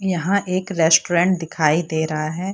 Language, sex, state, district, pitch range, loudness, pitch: Hindi, female, Bihar, Purnia, 160-185 Hz, -19 LUFS, 170 Hz